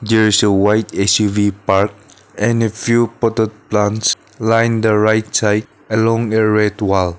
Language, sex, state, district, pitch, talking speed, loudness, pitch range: English, male, Nagaland, Dimapur, 110 Hz, 160 wpm, -15 LUFS, 105-110 Hz